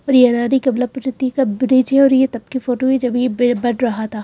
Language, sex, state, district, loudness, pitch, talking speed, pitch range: Hindi, female, Madhya Pradesh, Bhopal, -16 LUFS, 255 Hz, 255 wpm, 245-260 Hz